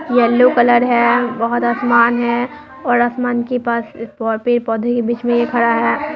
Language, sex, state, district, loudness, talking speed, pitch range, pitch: Hindi, female, Bihar, Muzaffarpur, -15 LUFS, 175 wpm, 235-245 Hz, 240 Hz